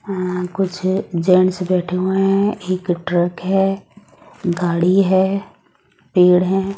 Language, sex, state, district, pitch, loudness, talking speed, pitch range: Hindi, female, Odisha, Nuapada, 185 Hz, -17 LUFS, 115 wpm, 180-195 Hz